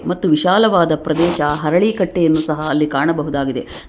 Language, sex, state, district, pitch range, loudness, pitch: Kannada, female, Karnataka, Bangalore, 150-175 Hz, -16 LUFS, 155 Hz